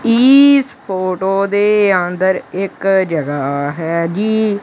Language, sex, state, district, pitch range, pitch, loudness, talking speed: Punjabi, male, Punjab, Kapurthala, 175-215 Hz, 195 Hz, -14 LUFS, 90 wpm